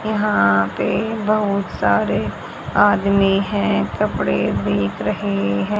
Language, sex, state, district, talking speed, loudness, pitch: Hindi, female, Haryana, Rohtak, 105 wpm, -19 LUFS, 195 Hz